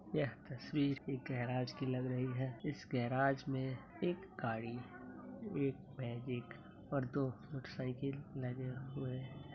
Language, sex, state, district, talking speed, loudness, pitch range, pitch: Hindi, male, Bihar, Muzaffarpur, 140 wpm, -41 LUFS, 125-140 Hz, 130 Hz